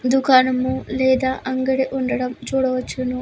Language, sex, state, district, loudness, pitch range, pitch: Telugu, female, Andhra Pradesh, Visakhapatnam, -19 LUFS, 255-265 Hz, 260 Hz